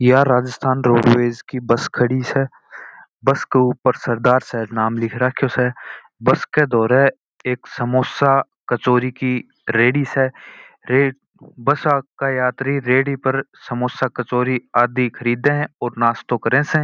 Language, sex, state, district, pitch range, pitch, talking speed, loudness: Marwari, male, Rajasthan, Churu, 120-135 Hz, 125 Hz, 140 wpm, -18 LUFS